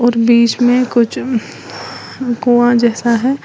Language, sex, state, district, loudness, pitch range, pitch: Hindi, female, Uttar Pradesh, Lalitpur, -13 LUFS, 235-245 Hz, 240 Hz